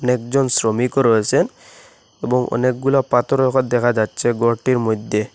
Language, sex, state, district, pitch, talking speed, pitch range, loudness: Bengali, male, Assam, Hailakandi, 125 Hz, 125 wpm, 115-130 Hz, -18 LUFS